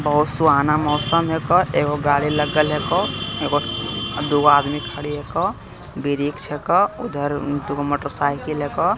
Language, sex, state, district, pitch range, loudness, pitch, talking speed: Hindi, male, Bihar, Begusarai, 145-150 Hz, -20 LUFS, 145 Hz, 135 wpm